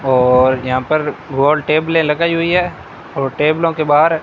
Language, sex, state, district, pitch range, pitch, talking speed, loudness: Hindi, male, Rajasthan, Bikaner, 135-165 Hz, 150 Hz, 170 wpm, -15 LUFS